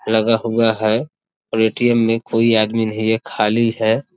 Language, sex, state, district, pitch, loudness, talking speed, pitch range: Hindi, male, Bihar, East Champaran, 115 Hz, -17 LUFS, 170 wpm, 110-115 Hz